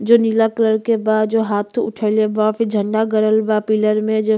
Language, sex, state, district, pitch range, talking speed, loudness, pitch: Bhojpuri, female, Uttar Pradesh, Gorakhpur, 215-220 Hz, 230 wpm, -17 LUFS, 215 Hz